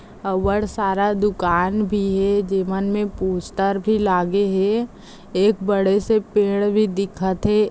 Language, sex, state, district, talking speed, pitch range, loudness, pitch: Hindi, female, Maharashtra, Sindhudurg, 130 wpm, 195-210 Hz, -20 LUFS, 200 Hz